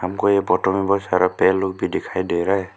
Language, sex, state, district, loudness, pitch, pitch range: Hindi, male, Arunachal Pradesh, Lower Dibang Valley, -20 LUFS, 95 Hz, 90-100 Hz